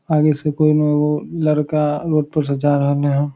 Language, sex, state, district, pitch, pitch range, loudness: Maithili, male, Bihar, Samastipur, 150 Hz, 145-155 Hz, -17 LUFS